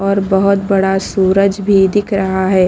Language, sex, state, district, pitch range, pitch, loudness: Hindi, female, Haryana, Rohtak, 190-200 Hz, 195 Hz, -13 LUFS